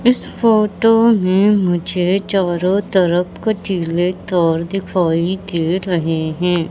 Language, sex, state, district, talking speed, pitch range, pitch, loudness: Hindi, female, Madhya Pradesh, Katni, 105 wpm, 175-200 Hz, 185 Hz, -16 LUFS